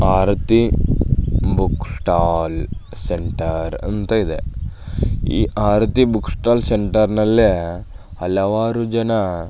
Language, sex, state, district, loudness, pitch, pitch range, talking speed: Kannada, male, Karnataka, Belgaum, -18 LUFS, 100 Hz, 85-110 Hz, 95 wpm